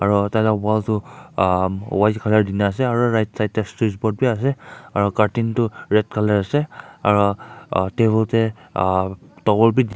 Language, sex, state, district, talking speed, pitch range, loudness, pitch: Nagamese, male, Nagaland, Kohima, 165 wpm, 100-115 Hz, -20 LUFS, 110 Hz